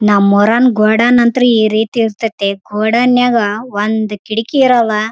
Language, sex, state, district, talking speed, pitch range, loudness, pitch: Kannada, female, Karnataka, Raichur, 95 wpm, 210-240 Hz, -12 LUFS, 220 Hz